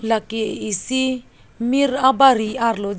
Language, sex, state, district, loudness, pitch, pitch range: Karbi, female, Assam, Karbi Anglong, -19 LUFS, 235 Hz, 220-260 Hz